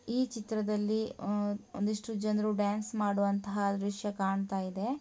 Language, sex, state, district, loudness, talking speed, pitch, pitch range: Kannada, female, Karnataka, Mysore, -33 LUFS, 110 wpm, 205 Hz, 200-215 Hz